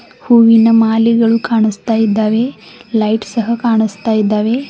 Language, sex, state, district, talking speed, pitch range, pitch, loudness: Kannada, female, Karnataka, Bidar, 100 wpm, 220-230 Hz, 225 Hz, -13 LUFS